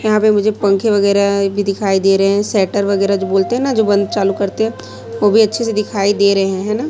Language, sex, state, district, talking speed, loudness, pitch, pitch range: Hindi, female, Chhattisgarh, Raipur, 250 wpm, -14 LUFS, 200 Hz, 195-215 Hz